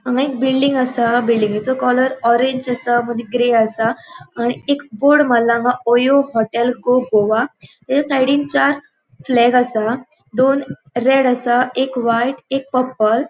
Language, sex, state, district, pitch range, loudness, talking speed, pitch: Konkani, female, Goa, North and South Goa, 235-265 Hz, -16 LUFS, 145 wpm, 250 Hz